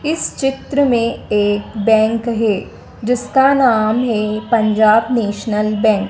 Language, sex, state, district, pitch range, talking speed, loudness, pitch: Hindi, female, Madhya Pradesh, Dhar, 215-245 Hz, 130 wpm, -15 LUFS, 225 Hz